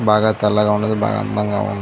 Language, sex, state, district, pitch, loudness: Telugu, male, Andhra Pradesh, Chittoor, 105 Hz, -18 LUFS